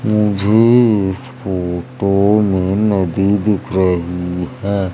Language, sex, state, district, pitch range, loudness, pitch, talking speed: Hindi, male, Madhya Pradesh, Umaria, 90-105 Hz, -15 LUFS, 100 Hz, 95 wpm